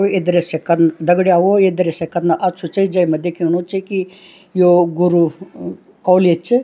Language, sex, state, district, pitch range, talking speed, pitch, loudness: Garhwali, female, Uttarakhand, Tehri Garhwal, 170-190 Hz, 155 wpm, 180 Hz, -15 LUFS